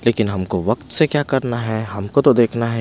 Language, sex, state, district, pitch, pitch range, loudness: Hindi, male, Punjab, Pathankot, 115 Hz, 110-125 Hz, -18 LUFS